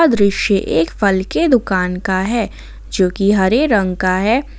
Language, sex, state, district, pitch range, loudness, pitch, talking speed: Hindi, female, Jharkhand, Ranchi, 185-225 Hz, -15 LUFS, 200 Hz, 155 wpm